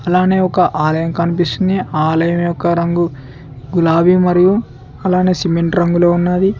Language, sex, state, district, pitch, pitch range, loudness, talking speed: Telugu, male, Telangana, Mahabubabad, 175 Hz, 165-180 Hz, -14 LUFS, 120 wpm